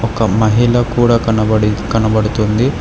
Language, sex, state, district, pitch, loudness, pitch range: Telugu, male, Telangana, Hyderabad, 110 Hz, -13 LUFS, 110-120 Hz